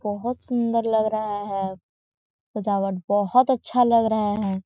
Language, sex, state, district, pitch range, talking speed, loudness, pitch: Hindi, female, Chhattisgarh, Korba, 195-230 Hz, 140 wpm, -23 LUFS, 210 Hz